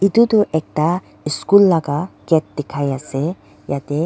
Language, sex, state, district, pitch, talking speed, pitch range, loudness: Nagamese, female, Nagaland, Dimapur, 155 Hz, 120 wpm, 145-185 Hz, -18 LUFS